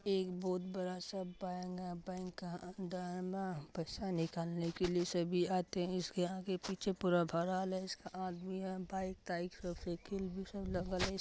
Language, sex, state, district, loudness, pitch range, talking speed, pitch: Hindi, female, Bihar, Madhepura, -40 LUFS, 180-190 Hz, 135 wpm, 185 Hz